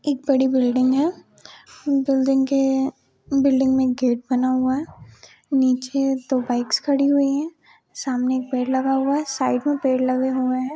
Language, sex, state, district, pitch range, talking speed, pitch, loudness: Hindi, female, Jharkhand, Sahebganj, 255-275 Hz, 165 wpm, 265 Hz, -21 LUFS